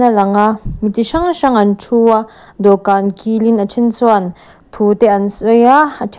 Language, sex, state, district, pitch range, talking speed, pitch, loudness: Mizo, female, Mizoram, Aizawl, 205-235 Hz, 225 wpm, 220 Hz, -12 LUFS